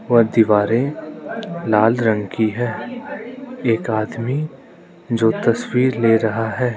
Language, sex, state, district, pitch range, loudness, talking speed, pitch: Hindi, male, Arunachal Pradesh, Lower Dibang Valley, 110-155 Hz, -19 LUFS, 115 wpm, 120 Hz